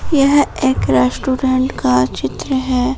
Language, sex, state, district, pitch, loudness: Hindi, female, Jharkhand, Palamu, 255 Hz, -15 LUFS